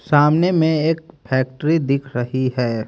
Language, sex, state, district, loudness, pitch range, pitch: Hindi, male, Haryana, Jhajjar, -19 LUFS, 130-160 Hz, 140 Hz